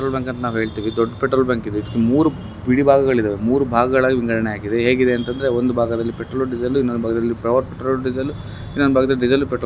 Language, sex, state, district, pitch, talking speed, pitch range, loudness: Kannada, male, Karnataka, Bellary, 120 Hz, 180 wpm, 115-130 Hz, -19 LUFS